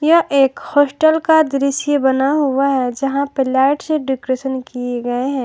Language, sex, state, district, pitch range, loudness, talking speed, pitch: Hindi, female, Jharkhand, Ranchi, 260-290 Hz, -16 LUFS, 175 wpm, 275 Hz